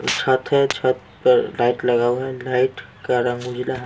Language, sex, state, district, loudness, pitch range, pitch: Hindi, male, Bihar, Patna, -20 LUFS, 125-130 Hz, 130 Hz